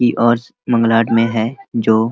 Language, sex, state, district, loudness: Hindi, male, Jharkhand, Sahebganj, -16 LUFS